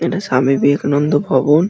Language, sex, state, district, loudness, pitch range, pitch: Bengali, male, West Bengal, Dakshin Dinajpur, -15 LUFS, 140-150 Hz, 145 Hz